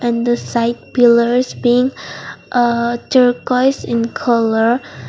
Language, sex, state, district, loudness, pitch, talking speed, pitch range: English, female, Mizoram, Aizawl, -15 LUFS, 240 Hz, 105 wpm, 235-250 Hz